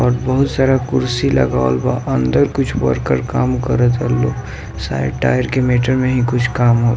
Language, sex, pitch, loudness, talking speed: Bhojpuri, male, 120 Hz, -16 LUFS, 130 wpm